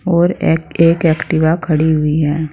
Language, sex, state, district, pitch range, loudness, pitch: Hindi, female, Uttar Pradesh, Saharanpur, 155-165 Hz, -14 LUFS, 160 Hz